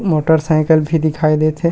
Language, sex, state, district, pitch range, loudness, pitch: Chhattisgarhi, male, Chhattisgarh, Rajnandgaon, 155-160 Hz, -14 LUFS, 155 Hz